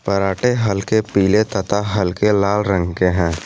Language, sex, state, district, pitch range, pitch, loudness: Hindi, male, Jharkhand, Garhwa, 95-105 Hz, 100 Hz, -17 LUFS